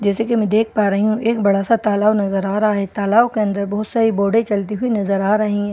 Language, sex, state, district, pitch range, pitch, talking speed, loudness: Hindi, female, Bihar, Katihar, 200-220 Hz, 210 Hz, 285 wpm, -17 LUFS